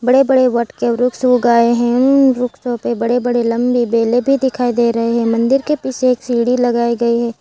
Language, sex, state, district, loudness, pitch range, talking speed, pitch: Hindi, female, Gujarat, Valsad, -14 LUFS, 235-255 Hz, 220 wpm, 245 Hz